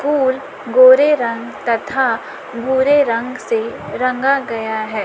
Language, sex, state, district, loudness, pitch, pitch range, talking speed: Hindi, female, Chhattisgarh, Raipur, -16 LUFS, 260 Hz, 230-285 Hz, 120 wpm